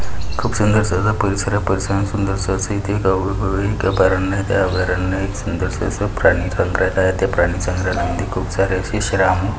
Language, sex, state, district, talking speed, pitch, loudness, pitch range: Marathi, male, Maharashtra, Chandrapur, 170 wpm, 95 Hz, -18 LUFS, 95-100 Hz